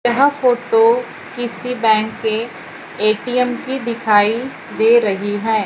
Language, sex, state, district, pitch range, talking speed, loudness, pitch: Hindi, female, Maharashtra, Gondia, 220-250 Hz, 115 wpm, -16 LUFS, 235 Hz